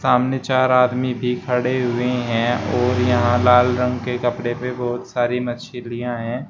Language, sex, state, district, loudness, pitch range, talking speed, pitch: Hindi, male, Uttar Pradesh, Shamli, -19 LUFS, 120-125 Hz, 165 wpm, 125 Hz